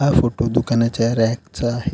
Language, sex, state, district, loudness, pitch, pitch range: Marathi, male, Maharashtra, Pune, -19 LUFS, 115 Hz, 115-120 Hz